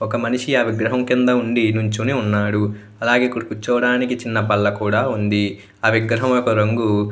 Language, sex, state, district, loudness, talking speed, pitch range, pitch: Telugu, male, Andhra Pradesh, Anantapur, -19 LUFS, 160 wpm, 105-125 Hz, 115 Hz